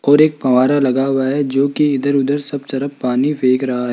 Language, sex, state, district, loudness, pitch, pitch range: Hindi, male, Rajasthan, Jaipur, -16 LUFS, 135 Hz, 130-145 Hz